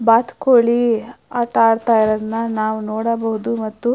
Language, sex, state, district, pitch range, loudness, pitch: Kannada, female, Karnataka, Mysore, 220-235 Hz, -17 LUFS, 230 Hz